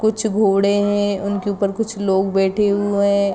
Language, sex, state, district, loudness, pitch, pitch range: Hindi, female, Jharkhand, Sahebganj, -18 LUFS, 200 Hz, 200-205 Hz